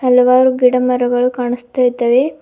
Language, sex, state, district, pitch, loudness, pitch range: Kannada, female, Karnataka, Bidar, 250 Hz, -13 LUFS, 245-255 Hz